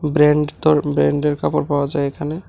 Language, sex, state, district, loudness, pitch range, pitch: Bengali, male, Tripura, West Tripura, -18 LUFS, 145-150 Hz, 150 Hz